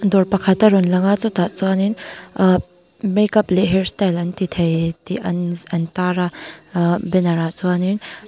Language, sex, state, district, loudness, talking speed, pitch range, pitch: Mizo, female, Mizoram, Aizawl, -18 LUFS, 190 wpm, 175-195 Hz, 185 Hz